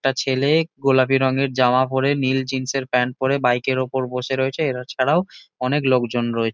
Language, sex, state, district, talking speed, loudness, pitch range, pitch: Bengali, male, West Bengal, Jalpaiguri, 195 wpm, -20 LUFS, 125-135 Hz, 130 Hz